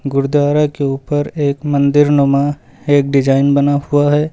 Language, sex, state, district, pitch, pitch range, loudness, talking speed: Hindi, male, Uttar Pradesh, Lucknow, 145 Hz, 140-145 Hz, -14 LUFS, 150 wpm